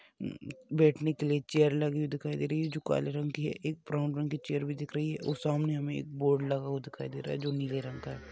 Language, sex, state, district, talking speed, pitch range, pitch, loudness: Hindi, male, Chhattisgarh, Raigarh, 295 wpm, 140-150 Hz, 145 Hz, -33 LUFS